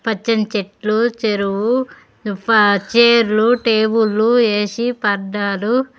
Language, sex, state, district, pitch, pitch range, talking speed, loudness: Telugu, female, Andhra Pradesh, Sri Satya Sai, 220 Hz, 205-235 Hz, 70 wpm, -16 LUFS